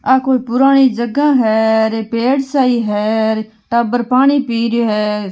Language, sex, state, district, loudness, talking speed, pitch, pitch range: Marwari, female, Rajasthan, Nagaur, -14 LUFS, 160 wpm, 235 Hz, 220-260 Hz